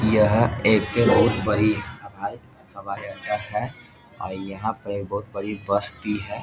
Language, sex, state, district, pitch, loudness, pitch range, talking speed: Hindi, male, Bihar, Jahanabad, 105 Hz, -23 LUFS, 100-110 Hz, 150 wpm